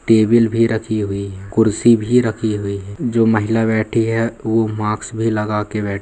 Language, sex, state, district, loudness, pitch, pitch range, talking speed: Hindi, male, Bihar, Purnia, -17 LUFS, 110 Hz, 105-115 Hz, 210 wpm